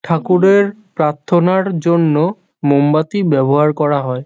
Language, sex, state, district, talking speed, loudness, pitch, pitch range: Bengali, male, West Bengal, North 24 Parganas, 100 wpm, -14 LUFS, 160 Hz, 150-185 Hz